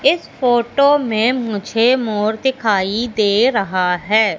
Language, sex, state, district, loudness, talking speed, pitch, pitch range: Hindi, female, Madhya Pradesh, Katni, -16 LUFS, 125 wpm, 225 Hz, 210-250 Hz